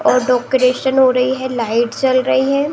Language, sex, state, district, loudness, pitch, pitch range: Hindi, female, Uttar Pradesh, Jalaun, -15 LUFS, 255 Hz, 245-265 Hz